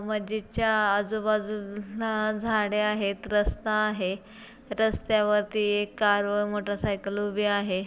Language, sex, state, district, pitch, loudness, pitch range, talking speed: Marathi, female, Maharashtra, Solapur, 210 Hz, -27 LUFS, 205-215 Hz, 115 wpm